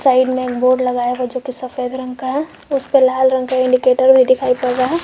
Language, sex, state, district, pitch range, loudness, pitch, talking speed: Hindi, female, Jharkhand, Garhwa, 255-260 Hz, -16 LUFS, 255 Hz, 260 wpm